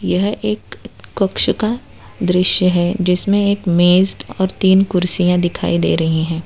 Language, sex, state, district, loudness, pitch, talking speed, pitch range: Hindi, female, Gujarat, Valsad, -16 LUFS, 180 Hz, 160 wpm, 175-195 Hz